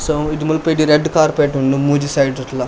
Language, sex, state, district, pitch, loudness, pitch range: Tulu, male, Karnataka, Dakshina Kannada, 150 Hz, -15 LUFS, 140-155 Hz